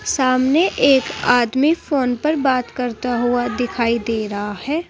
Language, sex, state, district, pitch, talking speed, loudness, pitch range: Hindi, female, Uttar Pradesh, Saharanpur, 250 Hz, 145 wpm, -18 LUFS, 240-275 Hz